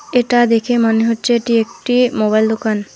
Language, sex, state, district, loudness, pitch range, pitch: Bengali, female, West Bengal, Alipurduar, -15 LUFS, 220-240 Hz, 230 Hz